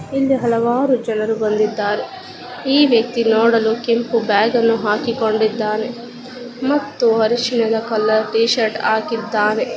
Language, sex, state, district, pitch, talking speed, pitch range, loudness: Kannada, male, Karnataka, Dakshina Kannada, 230 Hz, 105 wpm, 220-245 Hz, -17 LUFS